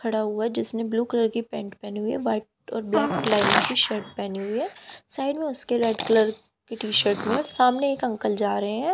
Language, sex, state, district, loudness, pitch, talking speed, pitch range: Hindi, female, Haryana, Jhajjar, -24 LUFS, 225 Hz, 235 wpm, 215-240 Hz